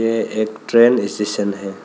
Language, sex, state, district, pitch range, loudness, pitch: Hindi, male, Arunachal Pradesh, Papum Pare, 100-115 Hz, -17 LUFS, 110 Hz